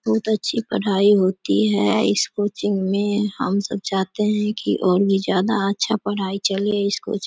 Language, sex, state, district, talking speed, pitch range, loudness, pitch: Hindi, female, Bihar, Samastipur, 180 wpm, 190-210 Hz, -20 LUFS, 200 Hz